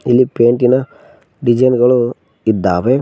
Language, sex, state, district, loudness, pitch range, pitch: Kannada, male, Karnataka, Koppal, -14 LUFS, 115-130 Hz, 120 Hz